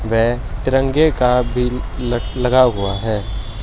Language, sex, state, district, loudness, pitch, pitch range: Hindi, male, Haryana, Charkhi Dadri, -17 LUFS, 120 Hz, 110-125 Hz